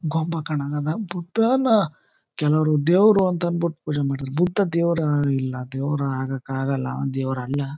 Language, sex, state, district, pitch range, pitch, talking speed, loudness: Kannada, male, Karnataka, Chamarajanagar, 135-170 Hz, 150 Hz, 130 wpm, -22 LUFS